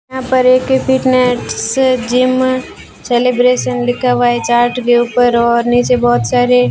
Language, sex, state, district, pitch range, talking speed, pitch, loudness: Hindi, female, Rajasthan, Bikaner, 240-255 Hz, 160 wpm, 245 Hz, -12 LUFS